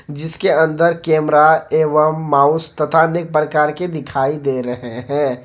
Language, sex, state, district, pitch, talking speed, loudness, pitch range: Hindi, male, Jharkhand, Garhwa, 155 Hz, 145 wpm, -16 LUFS, 140-160 Hz